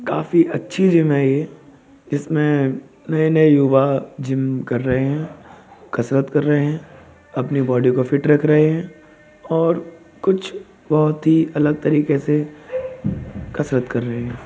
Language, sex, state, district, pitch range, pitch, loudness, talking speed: Hindi, male, Uttar Pradesh, Budaun, 135-155 Hz, 150 Hz, -18 LUFS, 145 wpm